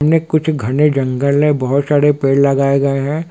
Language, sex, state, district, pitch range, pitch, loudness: Hindi, male, Bihar, Sitamarhi, 140-150 Hz, 140 Hz, -14 LUFS